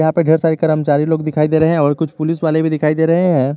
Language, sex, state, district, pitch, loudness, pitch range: Hindi, male, Jharkhand, Garhwa, 160 Hz, -15 LUFS, 150-160 Hz